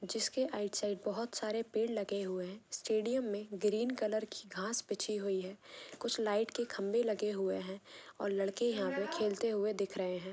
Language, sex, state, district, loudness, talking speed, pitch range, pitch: Hindi, female, Jharkhand, Jamtara, -37 LUFS, 200 wpm, 200-225 Hz, 210 Hz